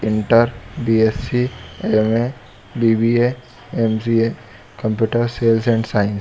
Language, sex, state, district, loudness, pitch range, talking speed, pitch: Hindi, male, Jharkhand, Sahebganj, -18 LUFS, 110-120 Hz, 95 wpm, 115 Hz